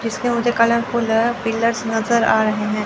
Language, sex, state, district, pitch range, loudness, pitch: Hindi, female, Chandigarh, Chandigarh, 225-235 Hz, -18 LUFS, 230 Hz